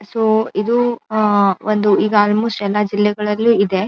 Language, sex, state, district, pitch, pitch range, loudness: Kannada, female, Karnataka, Dharwad, 210 Hz, 205-220 Hz, -16 LUFS